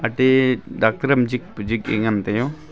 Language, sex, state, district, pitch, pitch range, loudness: Wancho, male, Arunachal Pradesh, Longding, 120 Hz, 110-130 Hz, -20 LUFS